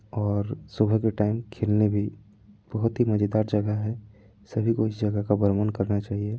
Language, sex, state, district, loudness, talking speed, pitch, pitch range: Hindi, male, Jharkhand, Sahebganj, -26 LUFS, 180 wpm, 105 Hz, 105-110 Hz